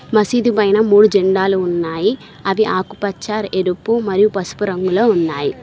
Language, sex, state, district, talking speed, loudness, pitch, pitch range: Telugu, female, Telangana, Mahabubabad, 130 wpm, -16 LUFS, 200 Hz, 185-215 Hz